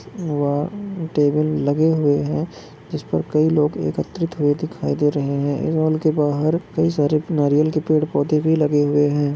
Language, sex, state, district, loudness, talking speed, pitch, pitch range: Hindi, male, Maharashtra, Nagpur, -20 LUFS, 180 wpm, 150 Hz, 145-160 Hz